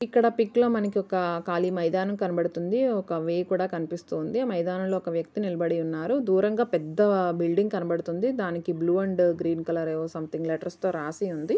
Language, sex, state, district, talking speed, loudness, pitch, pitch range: Telugu, female, Andhra Pradesh, Krishna, 170 wpm, -27 LUFS, 180 Hz, 170-200 Hz